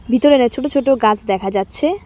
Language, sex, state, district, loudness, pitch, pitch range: Bengali, female, West Bengal, Cooch Behar, -15 LUFS, 255 Hz, 210-285 Hz